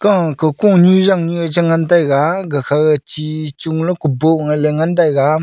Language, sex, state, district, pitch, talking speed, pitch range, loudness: Wancho, male, Arunachal Pradesh, Longding, 160 Hz, 175 wpm, 150-175 Hz, -14 LUFS